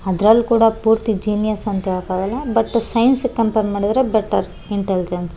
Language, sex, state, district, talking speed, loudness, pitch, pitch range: Kannada, female, Karnataka, Raichur, 155 wpm, -18 LUFS, 215 Hz, 195-230 Hz